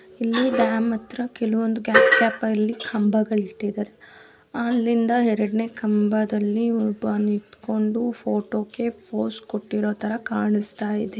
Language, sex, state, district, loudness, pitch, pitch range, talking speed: Kannada, female, Karnataka, Bellary, -23 LUFS, 220 Hz, 210-230 Hz, 75 wpm